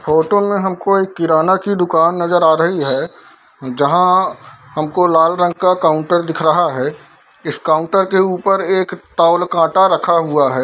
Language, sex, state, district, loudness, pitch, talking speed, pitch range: Hindi, male, Bihar, Darbhanga, -14 LUFS, 175 Hz, 170 wpm, 160-185 Hz